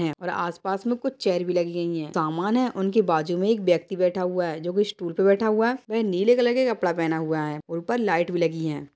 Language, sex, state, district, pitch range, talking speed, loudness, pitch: Hindi, female, Bihar, Jamui, 165-215 Hz, 270 wpm, -24 LUFS, 180 Hz